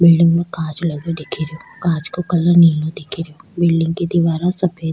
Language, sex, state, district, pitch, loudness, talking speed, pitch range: Rajasthani, female, Rajasthan, Churu, 165 Hz, -17 LUFS, 205 wpm, 160-175 Hz